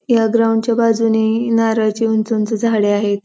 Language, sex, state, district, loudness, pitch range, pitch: Marathi, female, Maharashtra, Pune, -15 LUFS, 220-230 Hz, 225 Hz